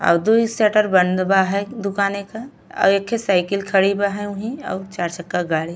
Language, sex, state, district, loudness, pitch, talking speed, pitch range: Bhojpuri, female, Uttar Pradesh, Ghazipur, -19 LUFS, 200 Hz, 175 wpm, 185-215 Hz